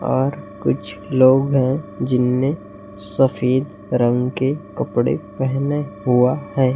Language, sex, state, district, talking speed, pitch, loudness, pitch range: Hindi, male, Chhattisgarh, Raipur, 105 wpm, 130 Hz, -19 LUFS, 125-135 Hz